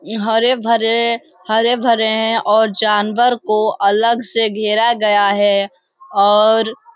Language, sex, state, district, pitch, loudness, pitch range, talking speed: Hindi, female, Bihar, Jamui, 220 Hz, -14 LUFS, 210-230 Hz, 120 wpm